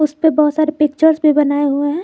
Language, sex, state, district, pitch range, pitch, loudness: Hindi, female, Jharkhand, Garhwa, 295-310 Hz, 300 Hz, -14 LUFS